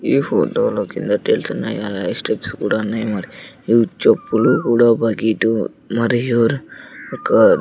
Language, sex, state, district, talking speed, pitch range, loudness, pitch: Telugu, male, Andhra Pradesh, Sri Satya Sai, 140 wpm, 110-120 Hz, -18 LUFS, 115 Hz